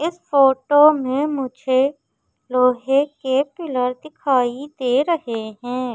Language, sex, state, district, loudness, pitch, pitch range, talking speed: Hindi, female, Madhya Pradesh, Umaria, -19 LUFS, 265 Hz, 250-290 Hz, 110 wpm